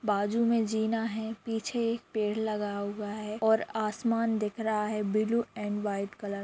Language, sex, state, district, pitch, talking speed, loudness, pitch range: Hindi, female, Jharkhand, Sahebganj, 215 Hz, 185 wpm, -31 LUFS, 210-225 Hz